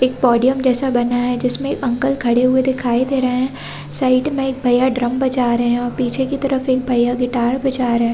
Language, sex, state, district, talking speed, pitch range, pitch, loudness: Hindi, female, Chhattisgarh, Raigarh, 230 wpm, 245-260 Hz, 250 Hz, -14 LUFS